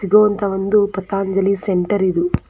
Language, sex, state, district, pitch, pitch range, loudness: Kannada, female, Karnataka, Belgaum, 195 Hz, 185-200 Hz, -17 LUFS